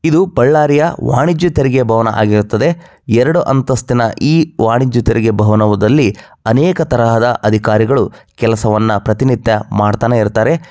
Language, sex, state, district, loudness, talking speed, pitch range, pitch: Kannada, male, Karnataka, Bellary, -12 LUFS, 105 wpm, 110-145 Hz, 120 Hz